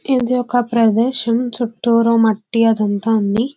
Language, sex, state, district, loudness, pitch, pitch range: Telugu, female, Andhra Pradesh, Visakhapatnam, -16 LUFS, 230 Hz, 225-245 Hz